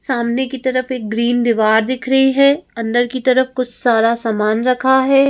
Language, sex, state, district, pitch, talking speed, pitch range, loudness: Hindi, female, Madhya Pradesh, Bhopal, 255 Hz, 190 wpm, 235-265 Hz, -15 LUFS